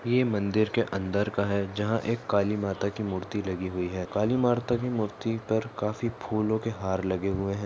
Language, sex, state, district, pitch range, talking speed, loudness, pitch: Hindi, male, Maharashtra, Solapur, 100-115 Hz, 210 wpm, -28 LUFS, 105 Hz